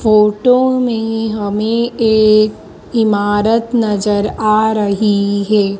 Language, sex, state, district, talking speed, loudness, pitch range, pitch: Hindi, female, Madhya Pradesh, Dhar, 95 wpm, -14 LUFS, 205-225 Hz, 215 Hz